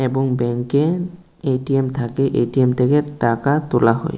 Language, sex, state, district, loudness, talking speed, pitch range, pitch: Bengali, male, Tripura, West Tripura, -18 LUFS, 130 wpm, 125-145 Hz, 135 Hz